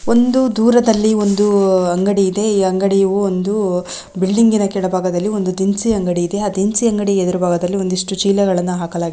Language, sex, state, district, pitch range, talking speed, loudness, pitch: Kannada, female, Karnataka, Belgaum, 185-210 Hz, 130 wpm, -15 LUFS, 195 Hz